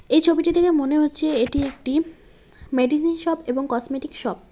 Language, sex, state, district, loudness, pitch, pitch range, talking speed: Bengali, female, West Bengal, Cooch Behar, -20 LUFS, 300 Hz, 270-330 Hz, 175 wpm